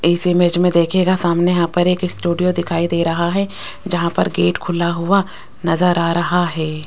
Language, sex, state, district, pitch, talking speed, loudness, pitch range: Hindi, female, Rajasthan, Jaipur, 175 Hz, 190 wpm, -17 LUFS, 170-180 Hz